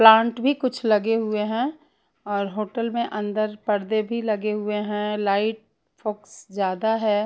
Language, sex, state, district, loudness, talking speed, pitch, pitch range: Hindi, female, Punjab, Pathankot, -24 LUFS, 155 wpm, 215 Hz, 210-225 Hz